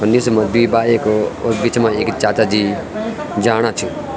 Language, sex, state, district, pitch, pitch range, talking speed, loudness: Garhwali, male, Uttarakhand, Tehri Garhwal, 110 Hz, 105-115 Hz, 160 wpm, -16 LUFS